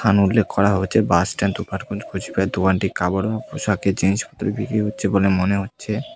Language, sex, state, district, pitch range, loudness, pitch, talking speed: Bengali, male, West Bengal, Cooch Behar, 95-105 Hz, -20 LUFS, 100 Hz, 155 wpm